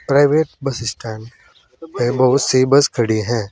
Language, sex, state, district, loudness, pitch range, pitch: Hindi, male, Uttar Pradesh, Saharanpur, -16 LUFS, 115-140 Hz, 130 Hz